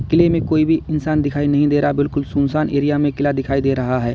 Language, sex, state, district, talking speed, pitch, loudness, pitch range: Hindi, male, Uttar Pradesh, Lalitpur, 260 wpm, 145 Hz, -17 LUFS, 140-155 Hz